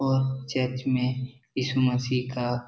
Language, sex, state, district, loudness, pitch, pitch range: Hindi, male, Bihar, Jahanabad, -27 LUFS, 130 Hz, 125-130 Hz